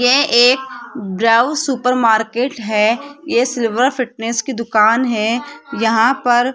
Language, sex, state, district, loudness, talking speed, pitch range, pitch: Hindi, female, Rajasthan, Jaipur, -15 LUFS, 135 wpm, 225-260 Hz, 240 Hz